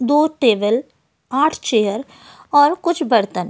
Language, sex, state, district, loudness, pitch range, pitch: Hindi, female, Delhi, New Delhi, -17 LUFS, 220-300 Hz, 265 Hz